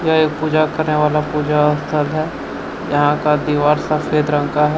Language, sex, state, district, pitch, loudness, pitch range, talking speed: Hindi, male, Jharkhand, Deoghar, 150 Hz, -17 LUFS, 150-155 Hz, 190 wpm